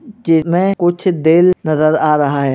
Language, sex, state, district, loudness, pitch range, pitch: Hindi, male, Uttar Pradesh, Budaun, -13 LUFS, 155-180 Hz, 165 Hz